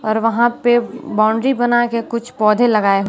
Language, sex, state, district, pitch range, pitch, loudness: Hindi, female, Bihar, West Champaran, 215-240 Hz, 235 Hz, -16 LUFS